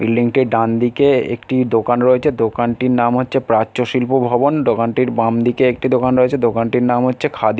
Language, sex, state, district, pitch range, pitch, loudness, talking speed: Bengali, male, West Bengal, Dakshin Dinajpur, 115-130 Hz, 125 Hz, -16 LUFS, 165 wpm